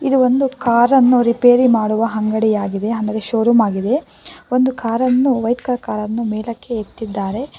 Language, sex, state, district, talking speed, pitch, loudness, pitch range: Kannada, female, Karnataka, Bangalore, 135 wpm, 235 Hz, -16 LUFS, 215-250 Hz